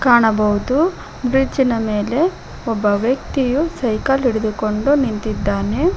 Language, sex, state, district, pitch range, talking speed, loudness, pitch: Kannada, female, Karnataka, Koppal, 215-270 Hz, 80 wpm, -18 LUFS, 240 Hz